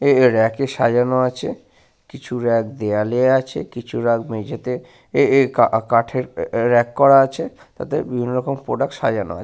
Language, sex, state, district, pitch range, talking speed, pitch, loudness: Bengali, male, West Bengal, Paschim Medinipur, 115-130 Hz, 145 wpm, 125 Hz, -19 LUFS